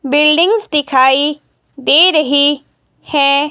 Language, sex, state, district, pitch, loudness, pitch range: Hindi, female, Himachal Pradesh, Shimla, 290 Hz, -11 LUFS, 285-305 Hz